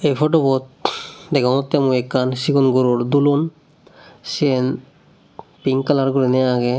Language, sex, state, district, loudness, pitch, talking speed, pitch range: Chakma, male, Tripura, Dhalai, -18 LUFS, 135 Hz, 125 wpm, 130-145 Hz